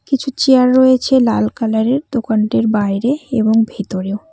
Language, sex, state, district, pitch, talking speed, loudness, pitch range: Bengali, female, West Bengal, Cooch Behar, 230 Hz, 140 wpm, -15 LUFS, 220-260 Hz